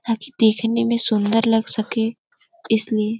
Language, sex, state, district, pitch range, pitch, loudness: Hindi, female, Uttar Pradesh, Gorakhpur, 220-235 Hz, 225 Hz, -18 LUFS